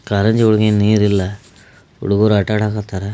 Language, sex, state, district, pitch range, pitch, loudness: Kannada, male, Karnataka, Belgaum, 100-110 Hz, 105 Hz, -15 LUFS